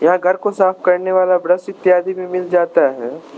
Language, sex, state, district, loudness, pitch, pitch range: Hindi, male, Arunachal Pradesh, Lower Dibang Valley, -16 LUFS, 185 Hz, 180-185 Hz